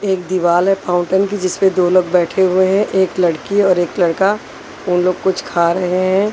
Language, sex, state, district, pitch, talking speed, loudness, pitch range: Hindi, female, Haryana, Rohtak, 185 Hz, 200 wpm, -15 LUFS, 180-195 Hz